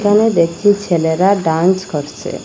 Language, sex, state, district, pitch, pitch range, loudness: Bengali, female, Assam, Hailakandi, 185 Hz, 165-205 Hz, -14 LUFS